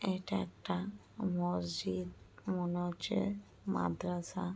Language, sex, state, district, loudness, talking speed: Bengali, female, West Bengal, Kolkata, -38 LUFS, 80 wpm